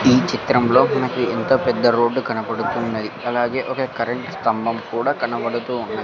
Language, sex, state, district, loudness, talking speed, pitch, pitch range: Telugu, male, Andhra Pradesh, Sri Satya Sai, -20 LUFS, 140 wpm, 120 Hz, 115-125 Hz